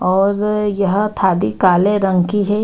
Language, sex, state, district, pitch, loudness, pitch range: Hindi, female, Bihar, Gaya, 200 Hz, -16 LUFS, 190-210 Hz